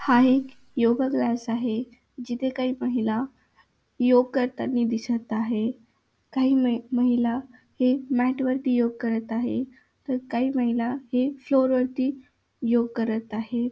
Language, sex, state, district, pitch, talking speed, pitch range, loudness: Marathi, female, Maharashtra, Aurangabad, 250 Hz, 130 wpm, 235-260 Hz, -25 LUFS